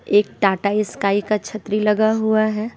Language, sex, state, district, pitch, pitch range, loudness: Hindi, female, Bihar, West Champaran, 210 Hz, 205-215 Hz, -19 LUFS